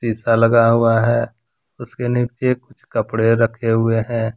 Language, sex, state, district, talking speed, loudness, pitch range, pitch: Hindi, male, Jharkhand, Deoghar, 150 wpm, -17 LUFS, 115-120 Hz, 115 Hz